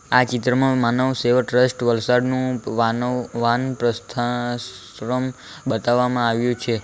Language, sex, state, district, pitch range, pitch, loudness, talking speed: Gujarati, male, Gujarat, Valsad, 120-125 Hz, 120 Hz, -21 LUFS, 90 wpm